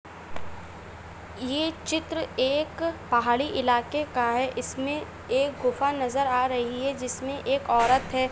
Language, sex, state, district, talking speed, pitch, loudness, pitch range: Hindi, female, Uttar Pradesh, Etah, 130 wpm, 255 Hz, -26 LUFS, 240-275 Hz